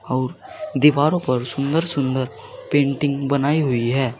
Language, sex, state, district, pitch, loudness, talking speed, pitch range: Hindi, male, Uttar Pradesh, Saharanpur, 140 Hz, -20 LUFS, 130 wpm, 130-145 Hz